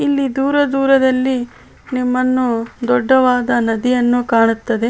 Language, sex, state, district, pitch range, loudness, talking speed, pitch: Kannada, female, Karnataka, Bellary, 235-265 Hz, -15 LUFS, 100 wpm, 250 Hz